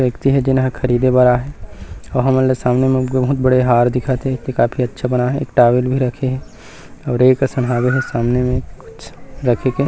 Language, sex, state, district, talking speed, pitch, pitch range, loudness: Chhattisgarhi, male, Chhattisgarh, Rajnandgaon, 220 wpm, 130 Hz, 125-130 Hz, -16 LUFS